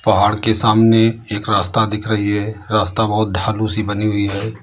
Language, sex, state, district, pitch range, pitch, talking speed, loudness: Hindi, male, Uttar Pradesh, Lalitpur, 105-110 Hz, 105 Hz, 195 wpm, -17 LUFS